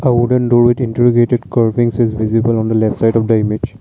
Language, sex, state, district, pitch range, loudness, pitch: English, male, Assam, Kamrup Metropolitan, 110-120 Hz, -14 LUFS, 115 Hz